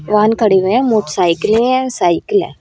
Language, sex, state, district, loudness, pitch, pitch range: Hindi, female, Haryana, Rohtak, -14 LUFS, 215 Hz, 185-250 Hz